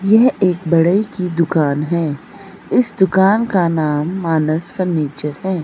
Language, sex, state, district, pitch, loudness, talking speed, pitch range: Hindi, female, Himachal Pradesh, Shimla, 175 Hz, -16 LUFS, 140 wpm, 160-195 Hz